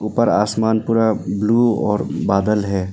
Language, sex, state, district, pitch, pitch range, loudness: Hindi, male, Arunachal Pradesh, Lower Dibang Valley, 105 Hz, 100-110 Hz, -18 LUFS